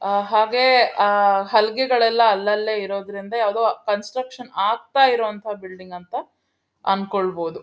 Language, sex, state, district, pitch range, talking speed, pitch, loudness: Kannada, female, Karnataka, Mysore, 200-230 Hz, 100 wpm, 210 Hz, -20 LUFS